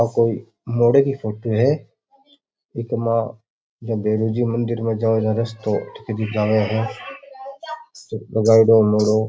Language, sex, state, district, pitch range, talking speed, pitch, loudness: Rajasthani, male, Rajasthan, Churu, 110-120 Hz, 115 wpm, 115 Hz, -19 LUFS